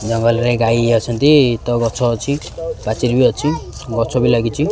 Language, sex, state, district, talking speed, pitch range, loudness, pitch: Odia, male, Odisha, Khordha, 165 wpm, 115-140 Hz, -16 LUFS, 120 Hz